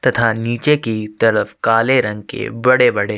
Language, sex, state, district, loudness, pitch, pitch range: Hindi, male, Chhattisgarh, Sukma, -16 LUFS, 115 Hz, 110-130 Hz